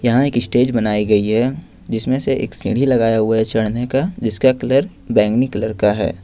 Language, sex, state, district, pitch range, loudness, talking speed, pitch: Hindi, male, Jharkhand, Ranchi, 110-130 Hz, -17 LUFS, 200 wpm, 120 Hz